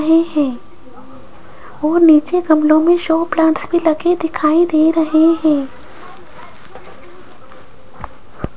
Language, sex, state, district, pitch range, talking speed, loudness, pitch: Hindi, female, Rajasthan, Jaipur, 305-330 Hz, 90 wpm, -14 LUFS, 320 Hz